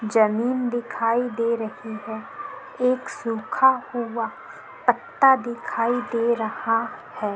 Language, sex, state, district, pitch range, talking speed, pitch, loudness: Hindi, female, Chhattisgarh, Korba, 225-250 Hz, 105 wpm, 235 Hz, -23 LUFS